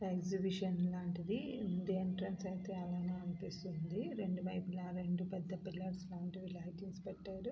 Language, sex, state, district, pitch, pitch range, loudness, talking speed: Telugu, female, Andhra Pradesh, Anantapur, 185 Hz, 180-190 Hz, -42 LUFS, 105 wpm